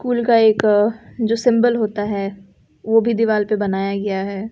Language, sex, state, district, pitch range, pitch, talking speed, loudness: Hindi, female, Bihar, West Champaran, 200-230 Hz, 215 Hz, 185 wpm, -18 LUFS